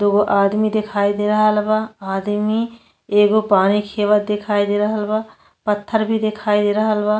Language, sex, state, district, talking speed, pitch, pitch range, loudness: Bhojpuri, female, Uttar Pradesh, Ghazipur, 165 wpm, 210 Hz, 205-215 Hz, -18 LUFS